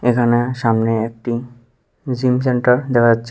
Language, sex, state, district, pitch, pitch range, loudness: Bengali, male, Tripura, West Tripura, 120 Hz, 115-125 Hz, -17 LUFS